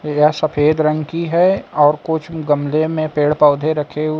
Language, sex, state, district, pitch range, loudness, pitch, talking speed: Hindi, male, Uttar Pradesh, Lucknow, 150-160 Hz, -16 LUFS, 155 Hz, 185 wpm